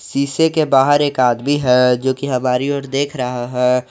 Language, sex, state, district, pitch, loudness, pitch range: Hindi, male, Jharkhand, Garhwa, 130 Hz, -16 LUFS, 125-140 Hz